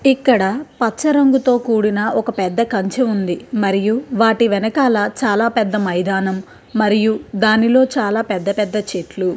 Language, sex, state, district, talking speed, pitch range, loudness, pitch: Telugu, female, Andhra Pradesh, Krishna, 135 wpm, 200-245 Hz, -16 LUFS, 220 Hz